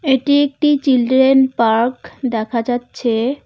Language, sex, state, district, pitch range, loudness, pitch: Bengali, female, West Bengal, Cooch Behar, 235-270 Hz, -16 LUFS, 255 Hz